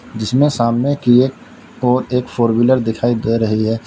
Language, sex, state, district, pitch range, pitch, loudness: Hindi, male, Uttar Pradesh, Lalitpur, 115-125 Hz, 120 Hz, -15 LUFS